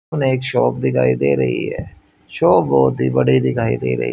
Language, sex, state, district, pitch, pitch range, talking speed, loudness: Hindi, male, Haryana, Charkhi Dadri, 65 Hz, 65-70 Hz, 205 wpm, -17 LUFS